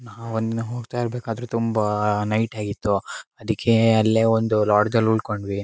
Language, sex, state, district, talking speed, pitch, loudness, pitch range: Kannada, male, Karnataka, Shimoga, 140 wpm, 110 Hz, -22 LUFS, 105-115 Hz